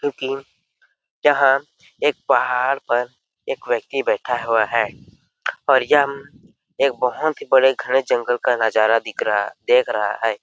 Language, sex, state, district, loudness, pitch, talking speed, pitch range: Hindi, male, Chhattisgarh, Sarguja, -19 LUFS, 135 Hz, 145 wpm, 120-145 Hz